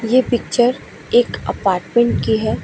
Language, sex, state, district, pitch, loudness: Hindi, female, Uttar Pradesh, Lucknow, 195 Hz, -17 LUFS